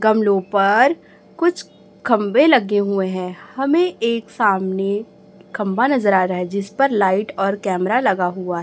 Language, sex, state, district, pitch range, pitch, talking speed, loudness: Hindi, male, Chhattisgarh, Raipur, 190-230 Hz, 200 Hz, 155 wpm, -18 LUFS